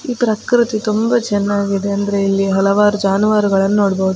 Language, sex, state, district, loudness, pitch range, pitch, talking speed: Kannada, female, Karnataka, Dakshina Kannada, -15 LUFS, 195-215 Hz, 205 Hz, 145 wpm